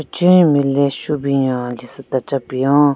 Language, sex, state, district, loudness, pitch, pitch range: Rengma, female, Nagaland, Kohima, -16 LUFS, 140 Hz, 130-145 Hz